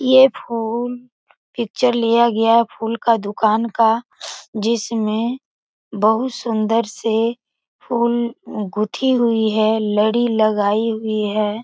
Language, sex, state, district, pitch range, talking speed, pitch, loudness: Hindi, female, Bihar, East Champaran, 215-235 Hz, 115 wpm, 230 Hz, -18 LUFS